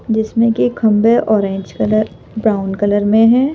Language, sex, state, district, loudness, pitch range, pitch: Hindi, female, Madhya Pradesh, Bhopal, -14 LUFS, 205-225 Hz, 215 Hz